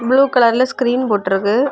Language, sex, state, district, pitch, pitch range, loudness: Tamil, female, Tamil Nadu, Kanyakumari, 245 Hz, 215-255 Hz, -15 LUFS